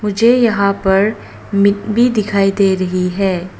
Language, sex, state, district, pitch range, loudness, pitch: Hindi, female, Arunachal Pradesh, Papum Pare, 195-210 Hz, -14 LUFS, 200 Hz